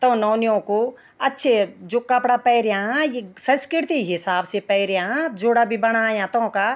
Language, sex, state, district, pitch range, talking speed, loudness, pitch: Garhwali, female, Uttarakhand, Tehri Garhwal, 205-250 Hz, 140 wpm, -20 LUFS, 230 Hz